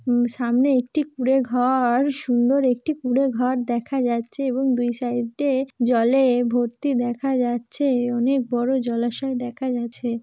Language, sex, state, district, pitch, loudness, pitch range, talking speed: Bengali, female, West Bengal, Malda, 250 Hz, -22 LUFS, 240-265 Hz, 135 wpm